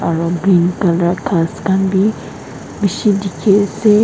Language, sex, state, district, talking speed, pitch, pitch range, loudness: Nagamese, female, Nagaland, Dimapur, 135 wpm, 190 Hz, 175-205 Hz, -15 LUFS